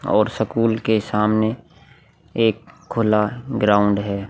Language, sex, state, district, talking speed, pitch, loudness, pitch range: Hindi, male, Bihar, Vaishali, 110 wpm, 110 Hz, -20 LUFS, 105-115 Hz